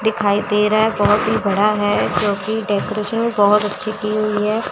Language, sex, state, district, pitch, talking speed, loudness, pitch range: Hindi, female, Chandigarh, Chandigarh, 210 Hz, 190 wpm, -17 LUFS, 205-215 Hz